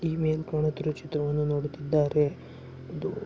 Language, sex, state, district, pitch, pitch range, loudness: Kannada, male, Karnataka, Mysore, 150 Hz, 150-155 Hz, -28 LUFS